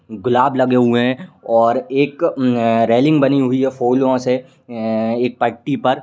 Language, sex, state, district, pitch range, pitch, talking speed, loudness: Hindi, male, Uttar Pradesh, Ghazipur, 115-135 Hz, 125 Hz, 170 wpm, -16 LUFS